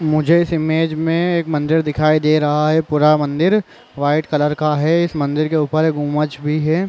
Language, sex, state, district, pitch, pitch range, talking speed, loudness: Hindi, male, Chhattisgarh, Raigarh, 155 Hz, 150-160 Hz, 210 wpm, -17 LUFS